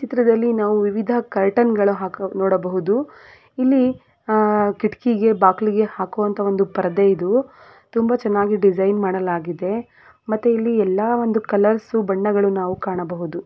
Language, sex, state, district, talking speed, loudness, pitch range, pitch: Kannada, female, Karnataka, Gulbarga, 115 wpm, -19 LUFS, 195-225 Hz, 210 Hz